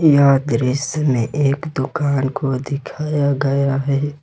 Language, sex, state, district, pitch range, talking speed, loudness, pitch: Hindi, male, Jharkhand, Ranchi, 135-145 Hz, 130 wpm, -18 LUFS, 140 Hz